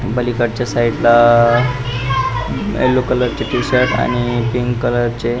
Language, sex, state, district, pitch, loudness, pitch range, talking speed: Marathi, male, Maharashtra, Pune, 120 Hz, -15 LUFS, 120-125 Hz, 145 wpm